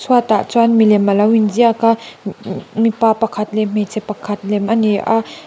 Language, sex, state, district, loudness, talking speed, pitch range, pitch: Mizo, female, Mizoram, Aizawl, -15 LUFS, 175 wpm, 210-230 Hz, 220 Hz